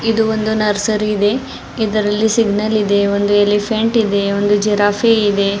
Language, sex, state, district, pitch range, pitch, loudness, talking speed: Kannada, female, Karnataka, Bidar, 205-220 Hz, 210 Hz, -15 LUFS, 140 wpm